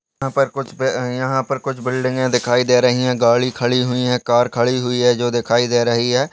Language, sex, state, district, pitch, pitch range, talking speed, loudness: Hindi, male, Goa, North and South Goa, 125 Hz, 120-130 Hz, 230 wpm, -17 LUFS